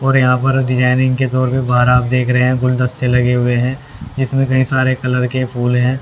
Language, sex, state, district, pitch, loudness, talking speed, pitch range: Hindi, male, Haryana, Rohtak, 125 Hz, -15 LUFS, 230 wpm, 125-130 Hz